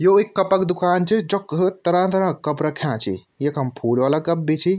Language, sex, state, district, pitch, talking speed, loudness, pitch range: Garhwali, male, Uttarakhand, Tehri Garhwal, 170 Hz, 225 wpm, -20 LUFS, 145-190 Hz